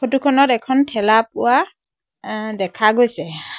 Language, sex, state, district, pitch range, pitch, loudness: Assamese, male, Assam, Sonitpur, 215-265 Hz, 235 Hz, -17 LUFS